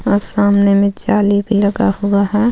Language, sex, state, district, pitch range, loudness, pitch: Hindi, female, Jharkhand, Ranchi, 200-205 Hz, -14 LUFS, 205 Hz